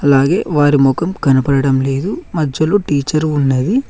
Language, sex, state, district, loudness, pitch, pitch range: Telugu, male, Telangana, Mahabubabad, -14 LUFS, 145 Hz, 135-155 Hz